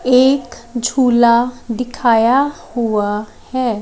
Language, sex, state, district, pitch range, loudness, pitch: Hindi, female, Chandigarh, Chandigarh, 235-255 Hz, -15 LUFS, 240 Hz